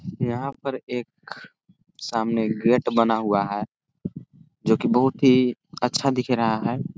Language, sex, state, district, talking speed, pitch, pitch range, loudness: Hindi, male, Chhattisgarh, Korba, 135 wpm, 125 Hz, 115-130 Hz, -23 LUFS